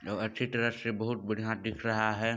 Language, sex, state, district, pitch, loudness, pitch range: Hindi, male, Chhattisgarh, Balrampur, 110 Hz, -32 LUFS, 110-115 Hz